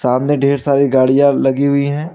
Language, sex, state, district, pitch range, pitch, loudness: Hindi, male, Jharkhand, Ranchi, 135-140 Hz, 140 Hz, -13 LUFS